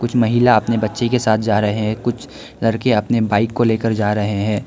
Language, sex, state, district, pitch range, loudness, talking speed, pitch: Hindi, male, Arunachal Pradesh, Lower Dibang Valley, 105-120 Hz, -17 LUFS, 230 wpm, 115 Hz